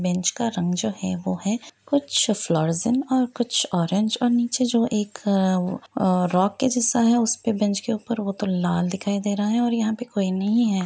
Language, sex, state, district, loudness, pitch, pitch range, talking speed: Hindi, female, Bihar, East Champaran, -23 LUFS, 210 Hz, 190-235 Hz, 220 wpm